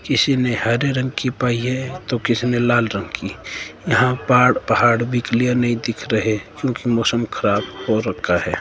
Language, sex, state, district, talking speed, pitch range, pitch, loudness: Hindi, male, Himachal Pradesh, Shimla, 180 wpm, 115-125 Hz, 120 Hz, -19 LUFS